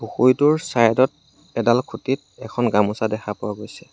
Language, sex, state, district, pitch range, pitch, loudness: Assamese, male, Assam, Sonitpur, 110-130 Hz, 115 Hz, -20 LUFS